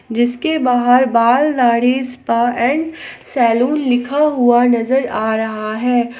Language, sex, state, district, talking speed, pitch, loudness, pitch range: Hindi, female, Jharkhand, Palamu, 125 wpm, 245 Hz, -15 LUFS, 235-260 Hz